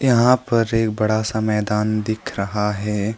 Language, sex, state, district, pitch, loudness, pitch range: Hindi, male, West Bengal, Alipurduar, 110 Hz, -20 LUFS, 105-115 Hz